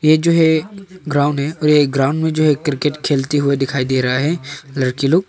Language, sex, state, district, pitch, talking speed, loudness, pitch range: Hindi, male, Arunachal Pradesh, Longding, 145 Hz, 225 wpm, -16 LUFS, 140-155 Hz